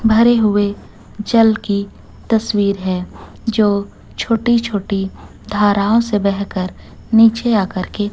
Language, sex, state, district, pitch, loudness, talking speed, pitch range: Hindi, female, Chhattisgarh, Raipur, 210 Hz, -16 LUFS, 120 wpm, 200-225 Hz